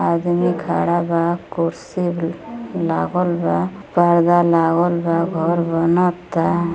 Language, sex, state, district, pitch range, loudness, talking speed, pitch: Bhojpuri, female, Uttar Pradesh, Gorakhpur, 165-175 Hz, -18 LUFS, 100 wpm, 170 Hz